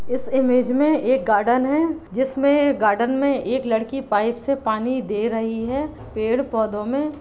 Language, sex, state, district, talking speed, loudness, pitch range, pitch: Hindi, female, Bihar, Sitamarhi, 165 wpm, -21 LUFS, 225-275 Hz, 255 Hz